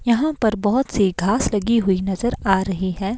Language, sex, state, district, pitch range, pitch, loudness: Hindi, female, Himachal Pradesh, Shimla, 190-235 Hz, 205 Hz, -20 LUFS